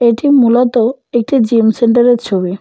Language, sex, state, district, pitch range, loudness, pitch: Bengali, female, West Bengal, Jalpaiguri, 230-250 Hz, -11 LUFS, 235 Hz